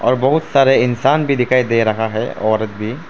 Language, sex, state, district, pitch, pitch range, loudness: Hindi, male, Arunachal Pradesh, Papum Pare, 125 Hz, 110-135 Hz, -15 LUFS